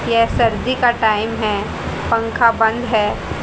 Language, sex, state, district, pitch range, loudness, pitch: Hindi, female, Haryana, Rohtak, 210-230 Hz, -17 LUFS, 225 Hz